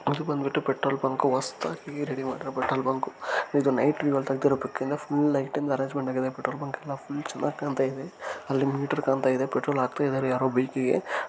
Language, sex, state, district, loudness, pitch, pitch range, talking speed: Kannada, male, Karnataka, Dharwad, -27 LUFS, 135 Hz, 130-145 Hz, 175 wpm